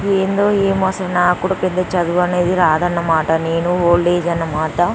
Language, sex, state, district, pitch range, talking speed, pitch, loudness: Telugu, female, Andhra Pradesh, Anantapur, 170-185 Hz, 160 wpm, 180 Hz, -16 LUFS